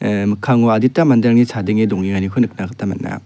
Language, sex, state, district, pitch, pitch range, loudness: Garo, male, Meghalaya, South Garo Hills, 110 Hz, 105-120 Hz, -16 LUFS